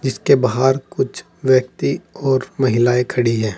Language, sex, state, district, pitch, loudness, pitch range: Hindi, male, Uttar Pradesh, Saharanpur, 130 Hz, -18 LUFS, 120-130 Hz